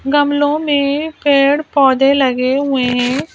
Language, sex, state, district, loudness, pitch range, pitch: Hindi, female, Madhya Pradesh, Bhopal, -14 LUFS, 265-290 Hz, 280 Hz